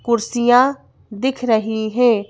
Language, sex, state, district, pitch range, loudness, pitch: Hindi, female, Madhya Pradesh, Bhopal, 220-250 Hz, -17 LUFS, 235 Hz